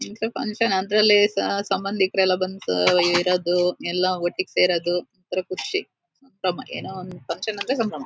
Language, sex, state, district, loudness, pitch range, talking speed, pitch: Kannada, female, Karnataka, Shimoga, -22 LUFS, 180-215 Hz, 140 wpm, 190 Hz